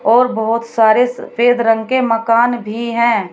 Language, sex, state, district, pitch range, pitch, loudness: Hindi, female, Uttar Pradesh, Shamli, 225-240 Hz, 230 Hz, -14 LUFS